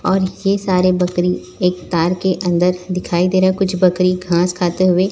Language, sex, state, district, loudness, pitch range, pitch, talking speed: Hindi, female, Chhattisgarh, Raipur, -16 LUFS, 180-185 Hz, 180 Hz, 200 wpm